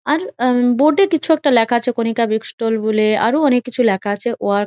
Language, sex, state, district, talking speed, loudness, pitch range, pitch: Bengali, female, West Bengal, Jhargram, 195 wpm, -16 LUFS, 220-270 Hz, 240 Hz